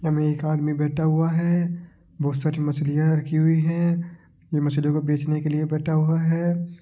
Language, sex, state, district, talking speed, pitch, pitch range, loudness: Marwari, male, Rajasthan, Nagaur, 195 wpm, 155 Hz, 150-165 Hz, -23 LUFS